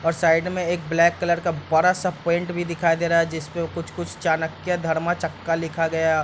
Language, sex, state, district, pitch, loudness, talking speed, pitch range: Hindi, male, Bihar, East Champaran, 170 Hz, -22 LUFS, 190 wpm, 165-175 Hz